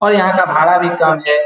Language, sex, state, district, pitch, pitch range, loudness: Hindi, male, Bihar, Saran, 175 Hz, 155-185 Hz, -12 LUFS